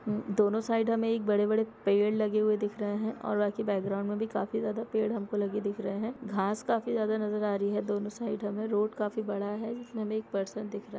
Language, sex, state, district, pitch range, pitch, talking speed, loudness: Hindi, female, Bihar, Sitamarhi, 205-220 Hz, 210 Hz, 250 wpm, -31 LUFS